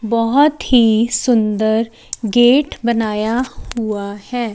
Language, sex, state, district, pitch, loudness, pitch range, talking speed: Hindi, female, Chandigarh, Chandigarh, 230 Hz, -16 LUFS, 220-245 Hz, 95 wpm